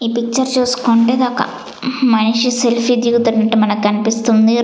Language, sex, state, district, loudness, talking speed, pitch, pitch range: Telugu, female, Andhra Pradesh, Sri Satya Sai, -14 LUFS, 115 wpm, 235 Hz, 225-245 Hz